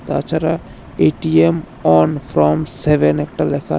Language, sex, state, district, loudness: Bengali, male, Tripura, West Tripura, -16 LUFS